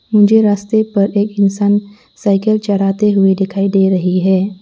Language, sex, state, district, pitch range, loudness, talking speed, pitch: Hindi, female, Arunachal Pradesh, Lower Dibang Valley, 195-210 Hz, -13 LUFS, 155 wpm, 200 Hz